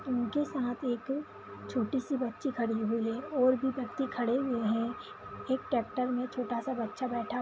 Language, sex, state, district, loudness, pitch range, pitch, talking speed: Kumaoni, male, Uttarakhand, Tehri Garhwal, -33 LUFS, 235-265 Hz, 250 Hz, 185 wpm